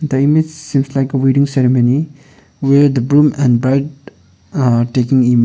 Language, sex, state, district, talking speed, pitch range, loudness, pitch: English, male, Sikkim, Gangtok, 175 wpm, 125-140 Hz, -13 LUFS, 135 Hz